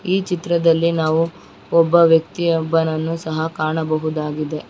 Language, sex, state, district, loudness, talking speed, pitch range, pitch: Kannada, female, Karnataka, Bangalore, -18 LUFS, 100 wpm, 155-170 Hz, 165 Hz